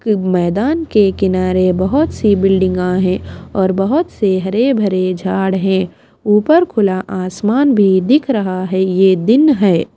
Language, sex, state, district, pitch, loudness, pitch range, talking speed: Hindi, female, Himachal Pradesh, Shimla, 195 Hz, -14 LUFS, 185-215 Hz, 155 wpm